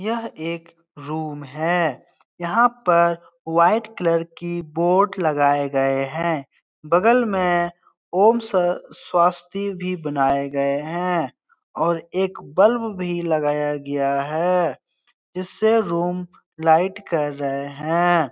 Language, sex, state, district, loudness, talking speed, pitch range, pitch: Hindi, male, Bihar, Jahanabad, -21 LUFS, 115 wpm, 150-180 Hz, 170 Hz